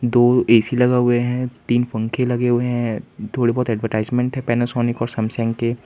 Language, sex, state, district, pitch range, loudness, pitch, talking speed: Hindi, male, Gujarat, Valsad, 115-125 Hz, -19 LUFS, 120 Hz, 185 wpm